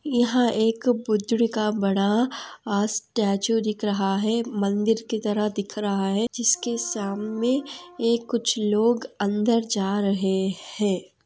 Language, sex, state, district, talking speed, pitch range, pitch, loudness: Hindi, female, Andhra Pradesh, Anantapur, 145 wpm, 205-235 Hz, 215 Hz, -24 LUFS